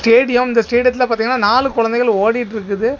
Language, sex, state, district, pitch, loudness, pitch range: Tamil, male, Tamil Nadu, Kanyakumari, 240 Hz, -15 LUFS, 230-250 Hz